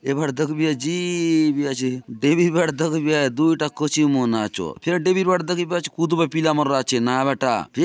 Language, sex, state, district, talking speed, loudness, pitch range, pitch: Halbi, male, Chhattisgarh, Bastar, 220 wpm, -21 LUFS, 135-170 Hz, 155 Hz